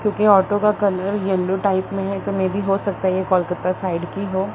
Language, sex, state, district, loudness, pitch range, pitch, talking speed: Hindi, female, Maharashtra, Mumbai Suburban, -20 LUFS, 185-200 Hz, 195 Hz, 235 wpm